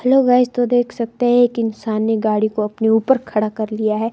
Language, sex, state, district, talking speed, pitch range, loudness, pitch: Hindi, female, Himachal Pradesh, Shimla, 245 wpm, 215-245 Hz, -17 LUFS, 225 Hz